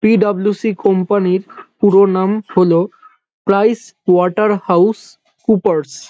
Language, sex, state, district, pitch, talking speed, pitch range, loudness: Bengali, male, West Bengal, North 24 Parganas, 200 Hz, 110 wpm, 185-220 Hz, -14 LUFS